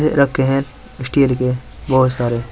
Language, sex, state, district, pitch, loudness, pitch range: Hindi, male, Uttar Pradesh, Saharanpur, 130 Hz, -17 LUFS, 125-135 Hz